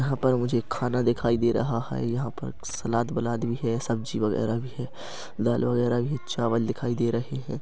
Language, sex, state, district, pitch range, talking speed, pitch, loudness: Hindi, male, Chhattisgarh, Rajnandgaon, 115-125 Hz, 205 wpm, 120 Hz, -27 LUFS